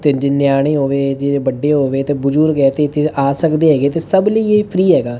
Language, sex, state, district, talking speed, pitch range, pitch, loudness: Punjabi, male, Punjab, Fazilka, 290 wpm, 140-160 Hz, 145 Hz, -14 LUFS